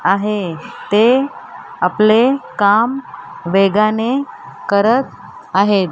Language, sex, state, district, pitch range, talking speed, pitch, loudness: Marathi, female, Maharashtra, Mumbai Suburban, 200-240 Hz, 70 wpm, 210 Hz, -15 LUFS